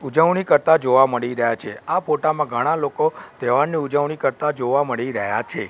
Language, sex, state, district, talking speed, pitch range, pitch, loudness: Gujarati, male, Gujarat, Gandhinagar, 190 wpm, 125-155 Hz, 145 Hz, -20 LUFS